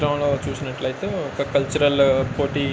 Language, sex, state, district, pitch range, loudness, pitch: Telugu, male, Andhra Pradesh, Anantapur, 135-145 Hz, -22 LUFS, 140 Hz